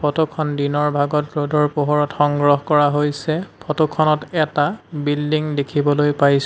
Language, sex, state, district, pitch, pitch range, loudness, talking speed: Assamese, male, Assam, Sonitpur, 150 Hz, 145-155 Hz, -19 LUFS, 120 wpm